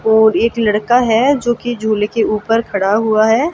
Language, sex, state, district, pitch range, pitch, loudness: Hindi, female, Haryana, Jhajjar, 215-235 Hz, 225 Hz, -14 LUFS